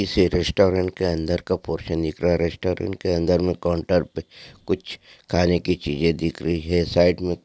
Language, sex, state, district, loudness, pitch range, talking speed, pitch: Hindi, male, Maharashtra, Aurangabad, -22 LUFS, 85-90 Hz, 185 wpm, 85 Hz